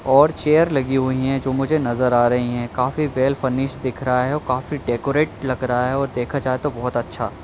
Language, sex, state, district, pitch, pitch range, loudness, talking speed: Hindi, male, Madhya Pradesh, Bhopal, 130 Hz, 125-140 Hz, -20 LUFS, 220 wpm